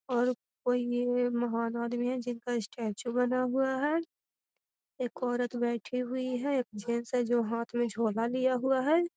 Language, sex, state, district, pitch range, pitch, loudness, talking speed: Magahi, female, Bihar, Gaya, 235-255 Hz, 245 Hz, -31 LUFS, 170 wpm